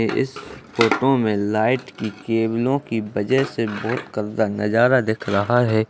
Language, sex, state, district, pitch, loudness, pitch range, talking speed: Hindi, male, Bihar, Purnia, 110 Hz, -21 LUFS, 105-125 Hz, 150 wpm